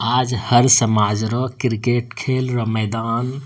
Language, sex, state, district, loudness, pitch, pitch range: Angika, male, Bihar, Bhagalpur, -18 LUFS, 120 Hz, 115-125 Hz